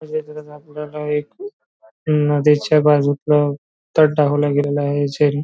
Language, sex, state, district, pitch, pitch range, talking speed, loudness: Marathi, male, Maharashtra, Nagpur, 150 Hz, 145-150 Hz, 120 wpm, -17 LUFS